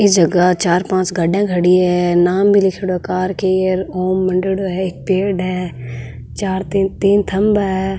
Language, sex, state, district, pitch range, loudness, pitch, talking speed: Marwari, female, Rajasthan, Nagaur, 180-195 Hz, -16 LUFS, 185 Hz, 180 wpm